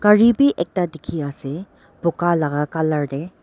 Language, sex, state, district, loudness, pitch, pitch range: Nagamese, female, Nagaland, Dimapur, -20 LUFS, 165 Hz, 150-185 Hz